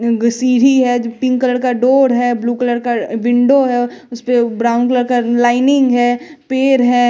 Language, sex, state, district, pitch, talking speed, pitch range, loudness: Hindi, female, Bihar, West Champaran, 245 Hz, 175 wpm, 240-255 Hz, -14 LUFS